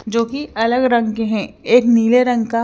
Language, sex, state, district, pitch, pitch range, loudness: Hindi, female, Chandigarh, Chandigarh, 230 Hz, 225-245 Hz, -16 LUFS